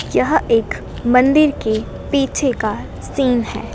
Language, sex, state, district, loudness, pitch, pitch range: Hindi, female, Gujarat, Gandhinagar, -17 LUFS, 250 Hz, 230-275 Hz